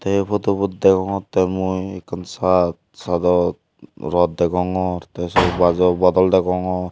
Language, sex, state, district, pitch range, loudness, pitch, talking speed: Chakma, male, Tripura, Unakoti, 90-95 Hz, -19 LUFS, 90 Hz, 120 wpm